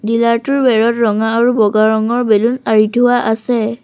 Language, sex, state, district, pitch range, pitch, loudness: Assamese, female, Assam, Sonitpur, 220-240 Hz, 230 Hz, -13 LUFS